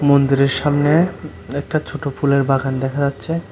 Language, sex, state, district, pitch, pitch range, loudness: Bengali, male, Tripura, West Tripura, 140 Hz, 135-145 Hz, -18 LUFS